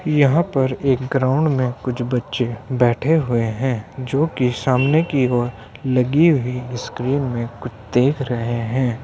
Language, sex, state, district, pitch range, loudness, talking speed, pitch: Hindi, male, Uttar Pradesh, Hamirpur, 120-135 Hz, -19 LUFS, 145 wpm, 125 Hz